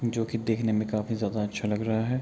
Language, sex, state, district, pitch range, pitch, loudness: Hindi, male, Bihar, Kishanganj, 105-115 Hz, 110 Hz, -29 LUFS